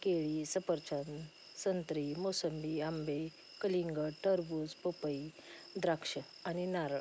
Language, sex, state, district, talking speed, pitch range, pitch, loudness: Marathi, female, Maharashtra, Pune, 105 wpm, 155-180 Hz, 160 Hz, -38 LUFS